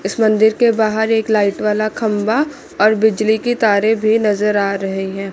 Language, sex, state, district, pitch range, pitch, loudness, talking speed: Hindi, female, Chandigarh, Chandigarh, 205-220 Hz, 215 Hz, -15 LUFS, 190 wpm